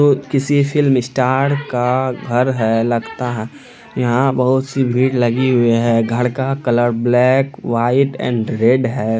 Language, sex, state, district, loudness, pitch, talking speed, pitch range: Hindi, male, Bihar, Araria, -16 LUFS, 125 Hz, 150 wpm, 120-135 Hz